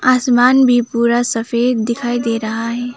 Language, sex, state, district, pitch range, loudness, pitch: Hindi, female, West Bengal, Alipurduar, 235-245 Hz, -15 LUFS, 240 Hz